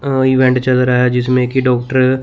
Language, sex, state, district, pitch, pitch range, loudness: Hindi, male, Chandigarh, Chandigarh, 130 Hz, 125-130 Hz, -13 LUFS